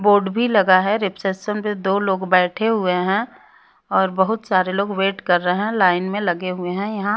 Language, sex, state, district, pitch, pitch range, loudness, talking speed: Hindi, female, Bihar, West Champaran, 195 Hz, 185-205 Hz, -19 LUFS, 210 wpm